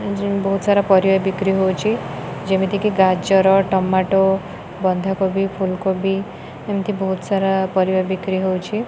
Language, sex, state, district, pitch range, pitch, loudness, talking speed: Odia, female, Odisha, Khordha, 190-195 Hz, 190 Hz, -18 LUFS, 140 wpm